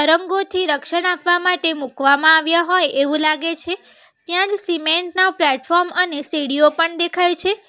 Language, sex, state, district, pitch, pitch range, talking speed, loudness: Gujarati, female, Gujarat, Valsad, 340 Hz, 310-360 Hz, 155 wpm, -16 LUFS